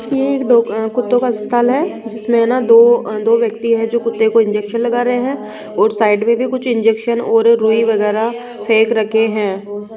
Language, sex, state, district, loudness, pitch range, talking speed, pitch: Hindi, female, Rajasthan, Jaipur, -14 LUFS, 220-240 Hz, 190 wpm, 230 Hz